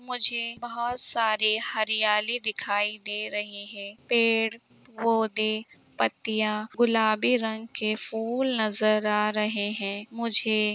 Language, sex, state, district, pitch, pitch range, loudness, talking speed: Hindi, female, Jharkhand, Sahebganj, 220 Hz, 215-230 Hz, -26 LUFS, 110 wpm